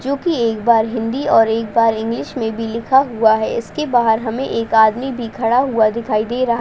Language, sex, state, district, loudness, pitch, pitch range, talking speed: Hindi, female, Uttar Pradesh, Ghazipur, -16 LUFS, 230 Hz, 225-250 Hz, 225 wpm